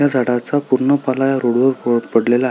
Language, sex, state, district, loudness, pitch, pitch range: Marathi, male, Maharashtra, Solapur, -16 LUFS, 130 Hz, 120-135 Hz